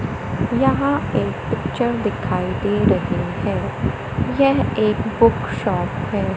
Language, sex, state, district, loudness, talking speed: Hindi, male, Madhya Pradesh, Katni, -20 LUFS, 115 wpm